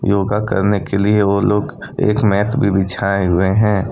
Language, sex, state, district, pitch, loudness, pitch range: Hindi, male, Jharkhand, Deoghar, 100 Hz, -16 LUFS, 100-105 Hz